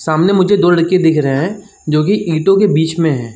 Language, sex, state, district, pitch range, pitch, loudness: Hindi, male, Uttar Pradesh, Jalaun, 155-195 Hz, 165 Hz, -13 LUFS